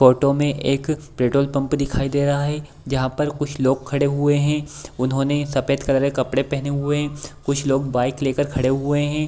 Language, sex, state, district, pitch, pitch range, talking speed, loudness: Hindi, male, Bihar, Kishanganj, 140 Hz, 135-145 Hz, 205 wpm, -21 LUFS